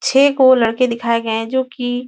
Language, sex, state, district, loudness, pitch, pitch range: Hindi, female, Uttar Pradesh, Etah, -15 LUFS, 245 Hz, 230-260 Hz